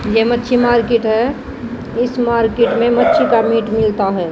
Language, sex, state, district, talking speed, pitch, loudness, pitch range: Hindi, female, Haryana, Jhajjar, 165 wpm, 235 Hz, -14 LUFS, 220-240 Hz